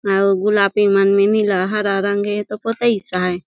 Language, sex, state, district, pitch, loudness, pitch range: Surgujia, female, Chhattisgarh, Sarguja, 200 Hz, -17 LUFS, 195-210 Hz